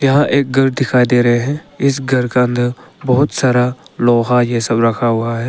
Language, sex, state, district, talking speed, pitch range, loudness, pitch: Hindi, male, Arunachal Pradesh, Longding, 205 wpm, 120-135 Hz, -14 LUFS, 125 Hz